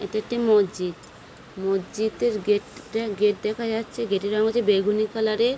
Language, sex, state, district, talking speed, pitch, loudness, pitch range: Bengali, female, West Bengal, Dakshin Dinajpur, 205 wpm, 215 Hz, -24 LUFS, 205-225 Hz